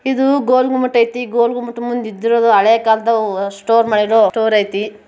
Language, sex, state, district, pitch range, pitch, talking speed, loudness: Kannada, female, Karnataka, Bijapur, 215-245 Hz, 230 Hz, 140 wpm, -14 LUFS